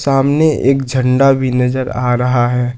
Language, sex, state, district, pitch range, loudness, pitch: Hindi, male, Jharkhand, Ranchi, 125-135 Hz, -13 LUFS, 130 Hz